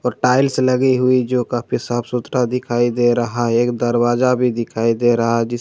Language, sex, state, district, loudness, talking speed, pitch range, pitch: Hindi, male, Bihar, Katihar, -17 LUFS, 225 wpm, 120-125 Hz, 120 Hz